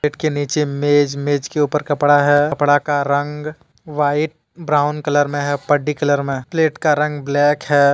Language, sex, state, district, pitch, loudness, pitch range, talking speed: Hindi, male, Jharkhand, Deoghar, 145 Hz, -17 LUFS, 145-150 Hz, 190 wpm